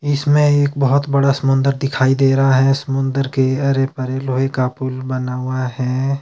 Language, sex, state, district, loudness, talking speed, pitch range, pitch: Hindi, male, Himachal Pradesh, Shimla, -17 LUFS, 185 wpm, 130-140 Hz, 135 Hz